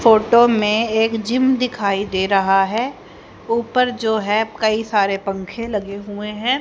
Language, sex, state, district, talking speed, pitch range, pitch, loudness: Hindi, female, Haryana, Charkhi Dadri, 155 wpm, 205-235 Hz, 220 Hz, -18 LUFS